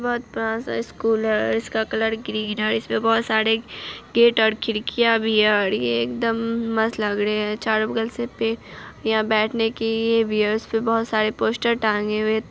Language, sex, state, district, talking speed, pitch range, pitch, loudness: Hindi, female, Bihar, Saharsa, 185 wpm, 215-225 Hz, 220 Hz, -21 LUFS